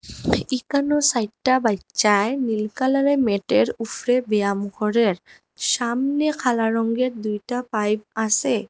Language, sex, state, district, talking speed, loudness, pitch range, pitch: Bengali, female, Assam, Hailakandi, 105 wpm, -21 LUFS, 215-255 Hz, 230 Hz